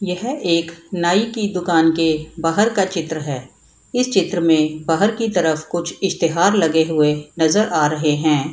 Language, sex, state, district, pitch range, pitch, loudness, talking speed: Hindi, female, Bihar, Madhepura, 155-190 Hz, 165 Hz, -18 LUFS, 175 wpm